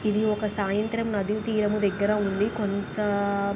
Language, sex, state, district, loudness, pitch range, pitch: Telugu, female, Andhra Pradesh, Krishna, -26 LUFS, 200-215 Hz, 210 Hz